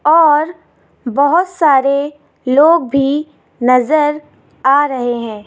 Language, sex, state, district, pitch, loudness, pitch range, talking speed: Hindi, female, Rajasthan, Jaipur, 285 Hz, -13 LUFS, 260-305 Hz, 100 wpm